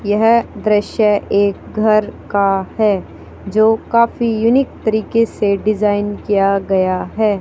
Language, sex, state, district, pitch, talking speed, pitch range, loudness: Hindi, female, Haryana, Charkhi Dadri, 210 Hz, 120 wpm, 200-220 Hz, -15 LUFS